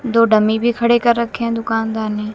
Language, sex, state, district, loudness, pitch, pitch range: Hindi, female, Haryana, Jhajjar, -16 LUFS, 230 Hz, 220-235 Hz